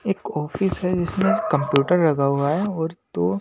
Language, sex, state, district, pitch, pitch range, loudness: Hindi, male, Maharashtra, Washim, 160 Hz, 140-195 Hz, -22 LUFS